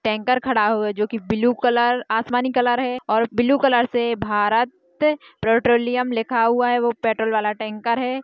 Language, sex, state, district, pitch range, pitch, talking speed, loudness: Hindi, female, Bihar, Madhepura, 220-245 Hz, 235 Hz, 175 wpm, -20 LUFS